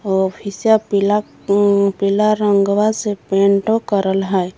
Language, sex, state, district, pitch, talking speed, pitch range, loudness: Magahi, female, Jharkhand, Palamu, 200 Hz, 130 wpm, 195-210 Hz, -16 LUFS